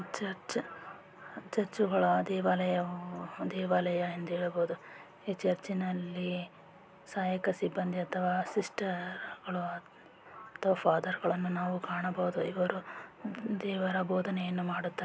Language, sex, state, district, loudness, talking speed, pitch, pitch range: Kannada, female, Karnataka, Raichur, -34 LUFS, 70 wpm, 185 Hz, 180-190 Hz